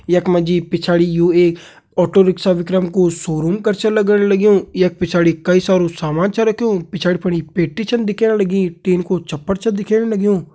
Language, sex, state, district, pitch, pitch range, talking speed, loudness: Hindi, male, Uttarakhand, Uttarkashi, 185 Hz, 175-205 Hz, 195 wpm, -16 LUFS